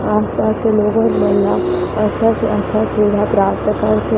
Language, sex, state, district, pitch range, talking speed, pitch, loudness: Chhattisgarhi, female, Chhattisgarh, Rajnandgaon, 210-220 Hz, 155 wpm, 210 Hz, -15 LUFS